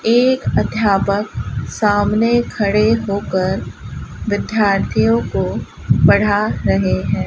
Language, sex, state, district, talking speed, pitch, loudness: Hindi, male, Rajasthan, Bikaner, 85 wpm, 200 Hz, -16 LUFS